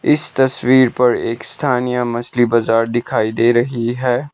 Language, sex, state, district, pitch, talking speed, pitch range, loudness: Hindi, male, Sikkim, Gangtok, 120 Hz, 150 wpm, 115-130 Hz, -16 LUFS